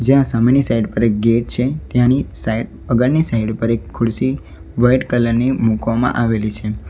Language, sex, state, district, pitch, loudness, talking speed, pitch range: Gujarati, male, Gujarat, Valsad, 115 Hz, -17 LUFS, 185 wpm, 115-130 Hz